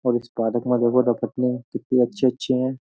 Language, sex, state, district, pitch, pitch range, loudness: Hindi, male, Uttar Pradesh, Jyotiba Phule Nagar, 125 Hz, 120-125 Hz, -22 LUFS